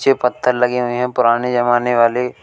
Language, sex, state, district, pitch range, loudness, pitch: Hindi, male, Uttar Pradesh, Shamli, 120-125 Hz, -16 LUFS, 125 Hz